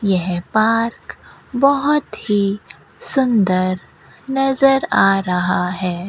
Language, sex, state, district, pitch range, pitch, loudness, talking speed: Hindi, female, Rajasthan, Bikaner, 185-265 Hz, 205 Hz, -17 LUFS, 90 wpm